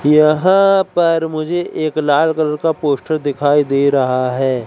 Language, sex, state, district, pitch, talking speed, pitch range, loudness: Hindi, male, Madhya Pradesh, Katni, 155 Hz, 155 wpm, 140-160 Hz, -15 LUFS